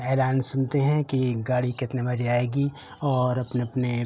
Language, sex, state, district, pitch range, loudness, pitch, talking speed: Hindi, male, Uttar Pradesh, Hamirpur, 125-135 Hz, -25 LUFS, 125 Hz, 160 wpm